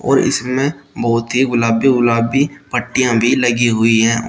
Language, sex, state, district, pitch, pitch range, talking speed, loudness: Hindi, male, Uttar Pradesh, Shamli, 120 Hz, 115-130 Hz, 170 wpm, -15 LUFS